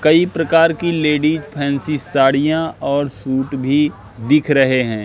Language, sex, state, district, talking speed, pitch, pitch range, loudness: Hindi, male, Madhya Pradesh, Katni, 140 wpm, 145 Hz, 135-155 Hz, -16 LUFS